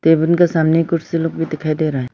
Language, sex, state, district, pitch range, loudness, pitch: Hindi, female, Arunachal Pradesh, Lower Dibang Valley, 155-165 Hz, -17 LUFS, 160 Hz